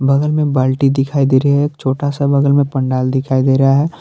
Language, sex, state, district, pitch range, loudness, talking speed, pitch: Hindi, male, Jharkhand, Palamu, 135-145 Hz, -14 LUFS, 255 wpm, 135 Hz